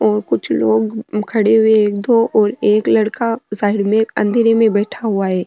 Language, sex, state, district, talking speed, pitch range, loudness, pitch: Rajasthani, female, Rajasthan, Nagaur, 195 wpm, 205-225 Hz, -15 LUFS, 215 Hz